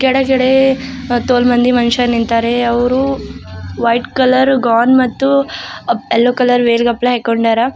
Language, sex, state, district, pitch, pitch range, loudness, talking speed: Kannada, female, Karnataka, Bidar, 245 Hz, 235-260 Hz, -13 LUFS, 110 wpm